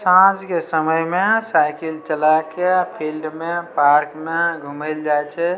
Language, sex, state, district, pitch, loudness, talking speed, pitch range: Maithili, male, Bihar, Samastipur, 160 Hz, -19 LUFS, 160 wpm, 155-175 Hz